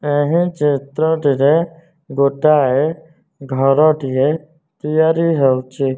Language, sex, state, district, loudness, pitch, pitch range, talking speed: Odia, male, Odisha, Nuapada, -16 LUFS, 150 Hz, 140-160 Hz, 60 wpm